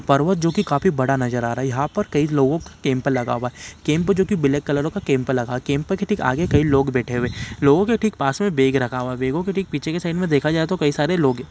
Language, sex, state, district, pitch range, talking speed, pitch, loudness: Hindi, male, Uttarakhand, Uttarkashi, 130-175 Hz, 285 wpm, 145 Hz, -20 LUFS